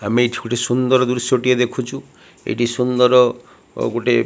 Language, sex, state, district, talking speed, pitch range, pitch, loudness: Odia, male, Odisha, Malkangiri, 140 wpm, 120-125 Hz, 125 Hz, -17 LUFS